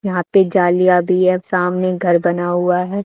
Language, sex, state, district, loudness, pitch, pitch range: Hindi, female, Haryana, Charkhi Dadri, -15 LUFS, 180 Hz, 175-185 Hz